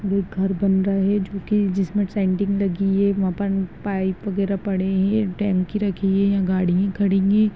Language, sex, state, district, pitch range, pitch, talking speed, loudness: Hindi, male, Chhattisgarh, Balrampur, 190-200 Hz, 195 Hz, 185 wpm, -21 LUFS